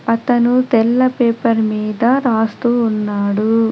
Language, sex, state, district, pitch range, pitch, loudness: Telugu, female, Telangana, Adilabad, 220-240 Hz, 230 Hz, -15 LUFS